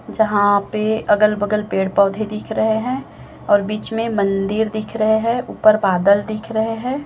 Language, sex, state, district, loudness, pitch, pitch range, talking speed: Hindi, female, Chhattisgarh, Raipur, -18 LUFS, 215 Hz, 205-220 Hz, 180 wpm